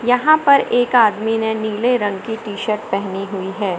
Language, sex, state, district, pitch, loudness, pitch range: Hindi, male, Madhya Pradesh, Katni, 220 Hz, -17 LUFS, 200-245 Hz